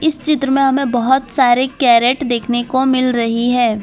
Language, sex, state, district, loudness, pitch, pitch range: Hindi, female, Gujarat, Valsad, -14 LUFS, 255 Hz, 240-270 Hz